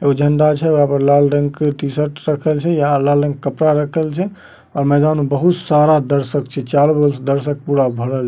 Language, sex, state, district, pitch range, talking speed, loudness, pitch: Magahi, male, Bihar, Samastipur, 140-155 Hz, 225 wpm, -15 LUFS, 145 Hz